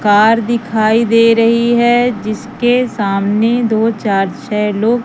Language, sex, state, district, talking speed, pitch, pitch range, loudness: Hindi, female, Madhya Pradesh, Katni, 130 wpm, 230 Hz, 210-235 Hz, -13 LUFS